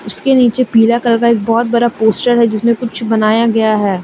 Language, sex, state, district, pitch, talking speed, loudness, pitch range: Hindi, female, Jharkhand, Deoghar, 230 Hz, 210 wpm, -12 LUFS, 220-235 Hz